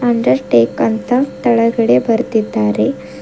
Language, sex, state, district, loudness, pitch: Kannada, female, Karnataka, Bidar, -14 LUFS, 225 Hz